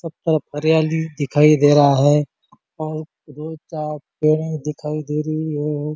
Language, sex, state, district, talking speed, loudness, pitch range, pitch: Hindi, male, Chhattisgarh, Bastar, 150 wpm, -19 LUFS, 150-155 Hz, 155 Hz